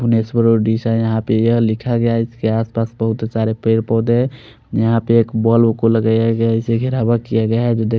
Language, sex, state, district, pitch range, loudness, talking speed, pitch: Hindi, male, Odisha, Khordha, 110-115 Hz, -16 LUFS, 195 wpm, 115 Hz